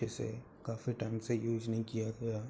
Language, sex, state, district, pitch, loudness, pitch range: Hindi, male, Uttar Pradesh, Hamirpur, 115 Hz, -38 LUFS, 110-115 Hz